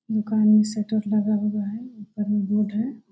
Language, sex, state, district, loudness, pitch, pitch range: Hindi, female, Bihar, Muzaffarpur, -23 LUFS, 215 Hz, 210-220 Hz